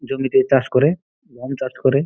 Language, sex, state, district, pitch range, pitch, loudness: Bengali, male, West Bengal, Dakshin Dinajpur, 130-140 Hz, 135 Hz, -18 LUFS